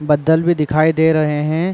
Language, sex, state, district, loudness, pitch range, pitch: Hindi, male, Uttar Pradesh, Varanasi, -15 LUFS, 150-160 Hz, 155 Hz